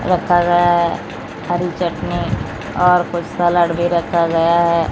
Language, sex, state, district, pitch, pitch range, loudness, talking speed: Hindi, female, Odisha, Malkangiri, 175 Hz, 170-175 Hz, -16 LUFS, 145 wpm